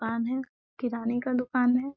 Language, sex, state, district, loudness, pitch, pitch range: Hindi, female, Bihar, Gaya, -29 LUFS, 250 Hz, 235-255 Hz